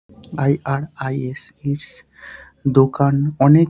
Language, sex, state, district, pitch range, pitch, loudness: Bengali, male, West Bengal, Dakshin Dinajpur, 135-145 Hz, 140 Hz, -19 LUFS